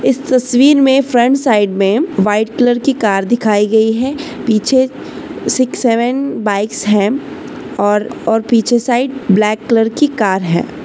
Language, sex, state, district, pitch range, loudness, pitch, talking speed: Hindi, female, Maharashtra, Solapur, 210-260 Hz, -13 LUFS, 230 Hz, 150 wpm